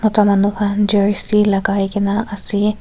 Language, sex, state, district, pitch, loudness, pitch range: Nagamese, female, Nagaland, Kohima, 205 Hz, -16 LUFS, 200-210 Hz